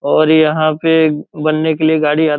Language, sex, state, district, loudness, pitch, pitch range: Hindi, male, Bihar, Purnia, -13 LUFS, 155 Hz, 155-160 Hz